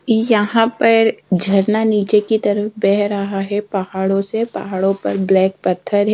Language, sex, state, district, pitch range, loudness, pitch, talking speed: Hindi, female, Odisha, Sambalpur, 195-220 Hz, -16 LUFS, 205 Hz, 155 wpm